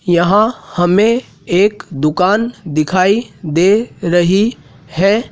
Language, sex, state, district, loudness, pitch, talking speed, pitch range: Hindi, male, Madhya Pradesh, Dhar, -14 LUFS, 185 Hz, 90 wpm, 170-215 Hz